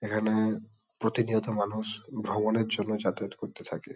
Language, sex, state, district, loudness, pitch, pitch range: Bengali, male, West Bengal, Kolkata, -30 LUFS, 110 Hz, 105-110 Hz